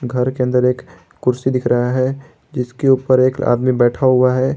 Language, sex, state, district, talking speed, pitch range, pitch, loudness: Hindi, male, Jharkhand, Garhwa, 195 wpm, 125-130 Hz, 130 Hz, -16 LUFS